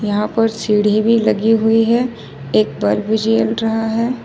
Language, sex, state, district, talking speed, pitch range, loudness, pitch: Hindi, female, Jharkhand, Ranchi, 200 wpm, 210-225 Hz, -16 LUFS, 225 Hz